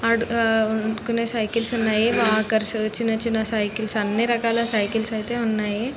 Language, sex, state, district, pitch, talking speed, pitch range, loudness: Telugu, female, Andhra Pradesh, Srikakulam, 225 Hz, 140 wpm, 220-230 Hz, -22 LUFS